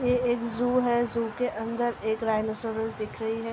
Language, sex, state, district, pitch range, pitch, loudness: Hindi, female, Uttar Pradesh, Hamirpur, 220-240 Hz, 230 Hz, -28 LUFS